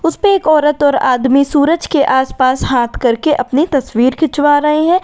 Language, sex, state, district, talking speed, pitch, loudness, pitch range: Hindi, female, Uttar Pradesh, Lalitpur, 190 wpm, 290 Hz, -12 LUFS, 260-310 Hz